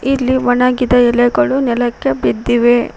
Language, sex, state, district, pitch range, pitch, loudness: Kannada, female, Karnataka, Koppal, 235-250 Hz, 245 Hz, -13 LUFS